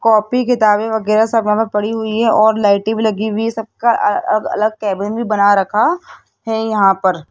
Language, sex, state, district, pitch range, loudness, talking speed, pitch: Hindi, female, Rajasthan, Jaipur, 210-225 Hz, -15 LUFS, 215 wpm, 220 Hz